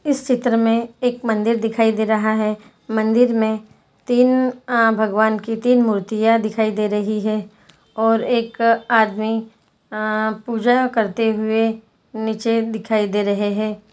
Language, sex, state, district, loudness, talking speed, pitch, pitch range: Hindi, female, Jharkhand, Jamtara, -19 LUFS, 135 wpm, 225 Hz, 215-230 Hz